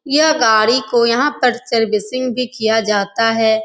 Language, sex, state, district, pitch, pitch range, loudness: Hindi, female, Uttar Pradesh, Etah, 235 Hz, 220-250 Hz, -15 LUFS